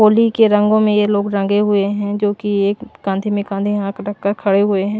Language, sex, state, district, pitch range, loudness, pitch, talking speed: Hindi, female, Maharashtra, Washim, 200-210 Hz, -16 LUFS, 205 Hz, 240 wpm